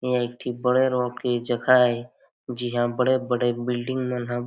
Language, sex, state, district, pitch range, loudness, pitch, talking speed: Chhattisgarhi, male, Chhattisgarh, Jashpur, 120-125 Hz, -24 LUFS, 125 Hz, 200 wpm